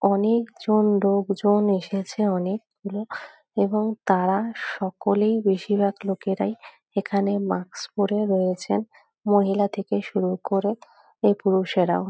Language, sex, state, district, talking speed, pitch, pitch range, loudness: Bengali, female, West Bengal, North 24 Parganas, 100 wpm, 200 Hz, 190-210 Hz, -24 LUFS